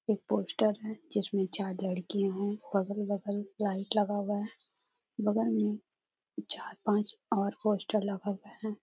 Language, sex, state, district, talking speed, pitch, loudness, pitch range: Hindi, female, Jharkhand, Sahebganj, 150 wpm, 205 Hz, -33 LUFS, 200-215 Hz